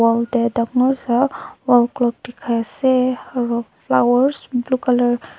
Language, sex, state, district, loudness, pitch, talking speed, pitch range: Nagamese, female, Nagaland, Dimapur, -18 LUFS, 245 Hz, 135 wpm, 235-255 Hz